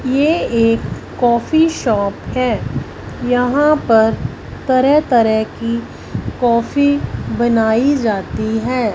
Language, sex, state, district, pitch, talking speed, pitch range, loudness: Hindi, female, Punjab, Fazilka, 240 Hz, 95 wpm, 225-275 Hz, -16 LUFS